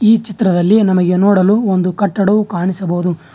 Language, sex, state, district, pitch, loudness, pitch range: Kannada, male, Karnataka, Bangalore, 190 Hz, -13 LUFS, 180-205 Hz